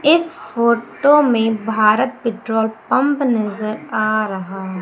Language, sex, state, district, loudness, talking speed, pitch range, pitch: Hindi, female, Madhya Pradesh, Umaria, -17 LUFS, 110 wpm, 215-260 Hz, 225 Hz